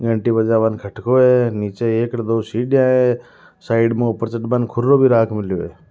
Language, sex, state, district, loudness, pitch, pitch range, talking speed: Marwari, male, Rajasthan, Nagaur, -17 LUFS, 115 Hz, 115-125 Hz, 215 wpm